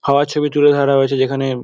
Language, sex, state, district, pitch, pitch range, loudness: Bengali, male, West Bengal, Dakshin Dinajpur, 140 Hz, 135-145 Hz, -15 LUFS